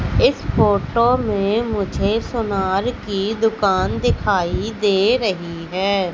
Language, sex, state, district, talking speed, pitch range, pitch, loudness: Hindi, female, Madhya Pradesh, Katni, 105 wpm, 195-225 Hz, 205 Hz, -19 LUFS